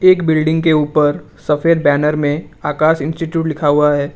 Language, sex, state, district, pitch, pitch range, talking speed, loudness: Hindi, male, Assam, Kamrup Metropolitan, 155 Hz, 150-160 Hz, 175 wpm, -15 LUFS